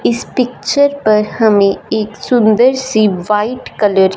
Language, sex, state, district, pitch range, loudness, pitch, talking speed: Hindi, female, Punjab, Fazilka, 210-250 Hz, -13 LUFS, 215 Hz, 145 wpm